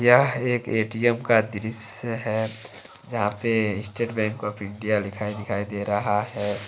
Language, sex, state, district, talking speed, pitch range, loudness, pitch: Hindi, male, Jharkhand, Deoghar, 150 wpm, 105-115 Hz, -24 LUFS, 110 Hz